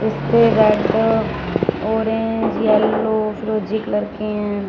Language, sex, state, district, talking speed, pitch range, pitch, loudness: Hindi, female, Punjab, Fazilka, 100 wpm, 210-220 Hz, 220 Hz, -18 LUFS